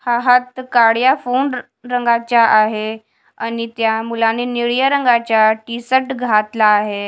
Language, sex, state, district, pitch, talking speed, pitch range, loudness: Marathi, female, Maharashtra, Washim, 235 Hz, 120 wpm, 220-250 Hz, -15 LUFS